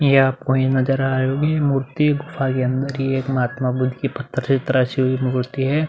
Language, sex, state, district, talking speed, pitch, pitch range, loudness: Hindi, male, Uttar Pradesh, Muzaffarnagar, 205 wpm, 135 Hz, 130-135 Hz, -20 LUFS